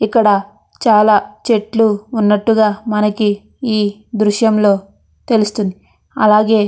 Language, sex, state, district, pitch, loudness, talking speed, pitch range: Telugu, female, Andhra Pradesh, Chittoor, 210 Hz, -14 LUFS, 100 wpm, 205-220 Hz